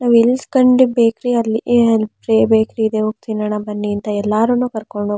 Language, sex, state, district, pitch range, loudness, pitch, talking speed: Kannada, male, Karnataka, Mysore, 215-240 Hz, -16 LUFS, 220 Hz, 125 wpm